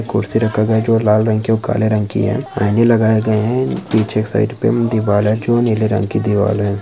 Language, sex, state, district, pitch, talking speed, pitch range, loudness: Hindi, male, Bihar, Araria, 110 Hz, 275 wpm, 105-115 Hz, -15 LUFS